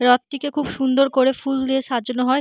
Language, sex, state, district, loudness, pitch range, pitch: Bengali, female, West Bengal, Jhargram, -20 LUFS, 250-275 Hz, 265 Hz